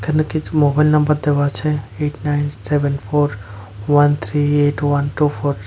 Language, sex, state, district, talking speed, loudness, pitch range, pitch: Bengali, male, Tripura, West Tripura, 180 wpm, -17 LUFS, 140-150 Hz, 145 Hz